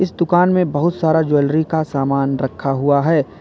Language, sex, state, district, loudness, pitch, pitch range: Hindi, male, Uttar Pradesh, Lalitpur, -17 LUFS, 155 Hz, 140-170 Hz